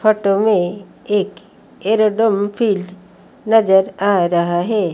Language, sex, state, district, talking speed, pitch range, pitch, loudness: Hindi, female, Odisha, Malkangiri, 110 wpm, 190-215 Hz, 200 Hz, -16 LUFS